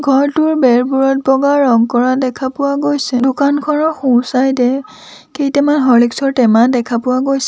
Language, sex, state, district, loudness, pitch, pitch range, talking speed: Assamese, female, Assam, Sonitpur, -13 LUFS, 270 Hz, 250-285 Hz, 150 wpm